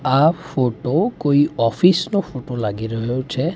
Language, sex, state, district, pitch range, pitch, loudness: Gujarati, male, Gujarat, Gandhinagar, 120-160 Hz, 135 Hz, -19 LUFS